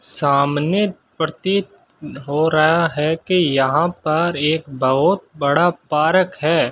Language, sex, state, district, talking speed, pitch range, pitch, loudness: Hindi, male, Rajasthan, Bikaner, 115 wpm, 145-175 Hz, 160 Hz, -18 LUFS